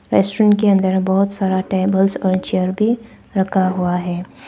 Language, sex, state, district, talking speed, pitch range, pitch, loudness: Hindi, female, Arunachal Pradesh, Papum Pare, 160 wpm, 185-200 Hz, 190 Hz, -17 LUFS